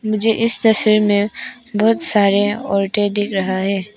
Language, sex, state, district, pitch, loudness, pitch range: Hindi, female, Arunachal Pradesh, Papum Pare, 210 Hz, -15 LUFS, 200-220 Hz